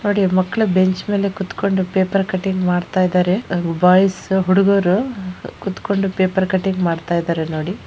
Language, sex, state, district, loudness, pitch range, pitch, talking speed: Kannada, female, Karnataka, Shimoga, -18 LUFS, 180-195 Hz, 185 Hz, 130 wpm